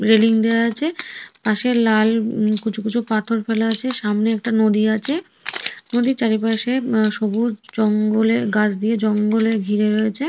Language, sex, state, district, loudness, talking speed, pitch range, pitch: Bengali, female, West Bengal, Paschim Medinipur, -19 LUFS, 140 wpm, 215-230 Hz, 220 Hz